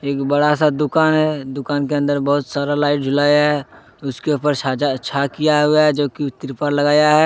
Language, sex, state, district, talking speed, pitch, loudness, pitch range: Hindi, male, Jharkhand, Deoghar, 200 wpm, 145 Hz, -17 LUFS, 140-150 Hz